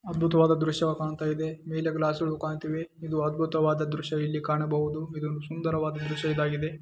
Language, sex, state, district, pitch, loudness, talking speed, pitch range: Kannada, male, Karnataka, Dharwad, 155 Hz, -28 LUFS, 160 wpm, 150-160 Hz